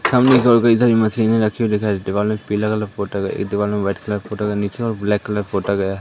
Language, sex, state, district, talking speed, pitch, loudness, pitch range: Hindi, male, Madhya Pradesh, Katni, 310 wpm, 105 Hz, -18 LUFS, 100-110 Hz